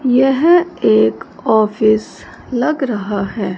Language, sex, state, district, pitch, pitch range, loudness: Hindi, female, Punjab, Fazilka, 225 Hz, 205-270 Hz, -15 LUFS